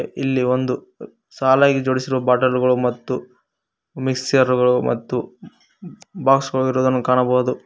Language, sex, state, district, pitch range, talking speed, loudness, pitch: Kannada, male, Karnataka, Koppal, 125-130 Hz, 110 wpm, -19 LUFS, 130 Hz